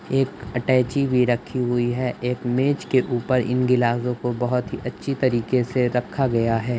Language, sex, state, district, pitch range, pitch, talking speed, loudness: Hindi, male, Uttar Pradesh, Budaun, 120-130 Hz, 125 Hz, 185 wpm, -22 LUFS